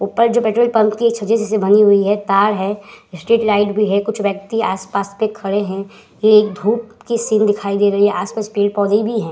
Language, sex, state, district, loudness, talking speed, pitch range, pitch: Hindi, female, Uttar Pradesh, Hamirpur, -16 LUFS, 220 wpm, 200-220 Hz, 210 Hz